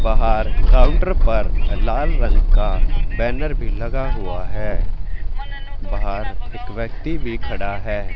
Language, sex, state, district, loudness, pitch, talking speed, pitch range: Hindi, male, Haryana, Rohtak, -23 LUFS, 105 Hz, 125 wpm, 95-115 Hz